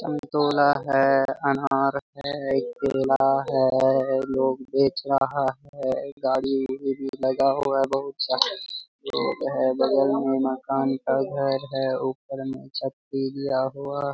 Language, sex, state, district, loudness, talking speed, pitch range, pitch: Hindi, male, Bihar, Araria, -24 LUFS, 140 wpm, 135-140 Hz, 135 Hz